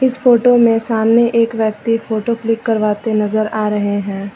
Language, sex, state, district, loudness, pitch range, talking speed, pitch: Hindi, female, Uttar Pradesh, Lucknow, -15 LUFS, 215-235 Hz, 180 wpm, 225 Hz